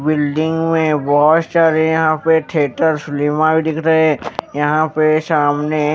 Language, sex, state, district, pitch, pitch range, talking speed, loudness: Hindi, male, Maharashtra, Mumbai Suburban, 155 Hz, 150-160 Hz, 150 wpm, -15 LUFS